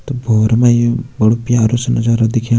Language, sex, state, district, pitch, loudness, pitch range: Hindi, male, Uttarakhand, Tehri Garhwal, 120 Hz, -14 LUFS, 115-120 Hz